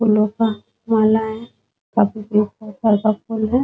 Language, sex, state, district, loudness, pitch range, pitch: Hindi, female, Bihar, Muzaffarpur, -19 LUFS, 210-225 Hz, 215 Hz